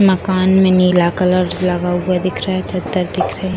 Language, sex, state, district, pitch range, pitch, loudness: Hindi, female, Bihar, Purnia, 180-185 Hz, 185 Hz, -15 LUFS